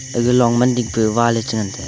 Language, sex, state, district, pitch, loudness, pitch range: Wancho, male, Arunachal Pradesh, Longding, 120 Hz, -17 LUFS, 110-125 Hz